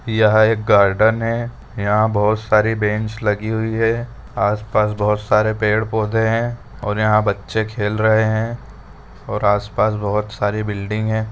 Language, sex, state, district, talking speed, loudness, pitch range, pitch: Hindi, male, Rajasthan, Churu, 140 wpm, -18 LUFS, 105-110 Hz, 110 Hz